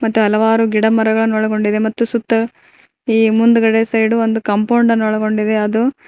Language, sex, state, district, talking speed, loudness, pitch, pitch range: Kannada, female, Karnataka, Koppal, 140 wpm, -14 LUFS, 225 Hz, 215-230 Hz